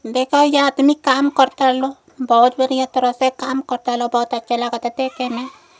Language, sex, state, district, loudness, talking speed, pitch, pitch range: Bhojpuri, female, Uttar Pradesh, Gorakhpur, -17 LUFS, 215 wpm, 260 Hz, 245-275 Hz